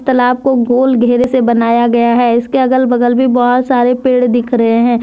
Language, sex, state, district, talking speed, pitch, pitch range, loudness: Hindi, female, Jharkhand, Deoghar, 215 wpm, 245 Hz, 240-255 Hz, -11 LUFS